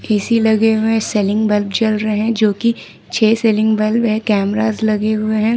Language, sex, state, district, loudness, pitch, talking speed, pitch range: Hindi, female, Jharkhand, Ranchi, -15 LUFS, 220 Hz, 185 wpm, 215-225 Hz